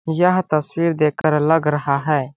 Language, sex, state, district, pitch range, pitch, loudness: Hindi, male, Chhattisgarh, Balrampur, 150-165 Hz, 155 Hz, -18 LUFS